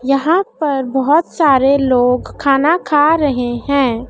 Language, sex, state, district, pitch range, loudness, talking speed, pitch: Hindi, female, Madhya Pradesh, Dhar, 260-305 Hz, -14 LUFS, 130 wpm, 275 Hz